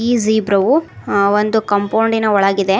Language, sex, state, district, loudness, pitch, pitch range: Kannada, female, Karnataka, Koppal, -15 LUFS, 210 Hz, 200-220 Hz